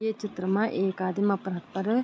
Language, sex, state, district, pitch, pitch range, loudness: Garhwali, female, Uttarakhand, Tehri Garhwal, 195 Hz, 190-215 Hz, -28 LUFS